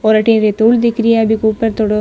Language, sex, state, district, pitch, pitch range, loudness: Marwari, female, Rajasthan, Nagaur, 220 Hz, 215-230 Hz, -13 LUFS